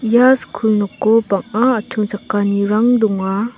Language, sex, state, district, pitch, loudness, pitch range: Garo, female, Meghalaya, South Garo Hills, 215 Hz, -16 LUFS, 205-235 Hz